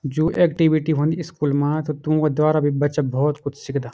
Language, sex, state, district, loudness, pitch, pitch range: Garhwali, male, Uttarakhand, Uttarkashi, -20 LUFS, 150 Hz, 145-155 Hz